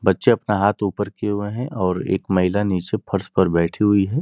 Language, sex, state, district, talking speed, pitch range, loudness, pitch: Hindi, male, Uttar Pradesh, Gorakhpur, 225 wpm, 95-105 Hz, -20 LUFS, 100 Hz